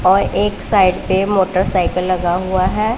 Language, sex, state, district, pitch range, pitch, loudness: Hindi, female, Punjab, Pathankot, 185-195 Hz, 185 Hz, -16 LUFS